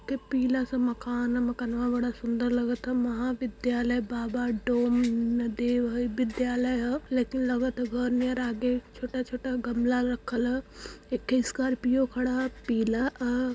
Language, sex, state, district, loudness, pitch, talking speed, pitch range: Awadhi, female, Uttar Pradesh, Varanasi, -28 LUFS, 245 Hz, 150 wpm, 240-255 Hz